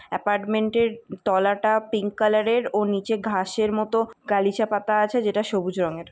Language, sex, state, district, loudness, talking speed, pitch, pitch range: Bengali, female, West Bengal, North 24 Parganas, -23 LUFS, 165 wpm, 215 Hz, 200-220 Hz